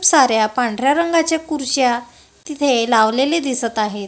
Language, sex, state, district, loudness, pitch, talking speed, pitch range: Marathi, female, Maharashtra, Gondia, -17 LUFS, 260 Hz, 115 wpm, 230-305 Hz